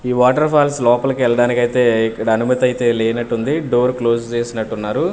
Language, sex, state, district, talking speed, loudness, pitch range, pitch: Telugu, male, Andhra Pradesh, Manyam, 115 wpm, -16 LUFS, 115-125 Hz, 120 Hz